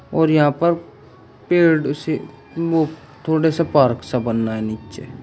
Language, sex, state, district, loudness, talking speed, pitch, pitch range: Hindi, male, Uttar Pradesh, Shamli, -19 LUFS, 140 wpm, 145 Hz, 125-160 Hz